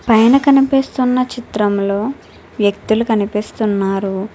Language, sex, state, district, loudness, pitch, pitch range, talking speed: Telugu, female, Telangana, Hyderabad, -15 LUFS, 220 Hz, 205-255 Hz, 70 wpm